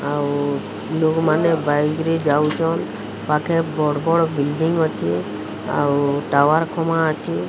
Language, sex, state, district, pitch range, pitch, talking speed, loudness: Odia, female, Odisha, Sambalpur, 140-160 Hz, 150 Hz, 110 wpm, -20 LUFS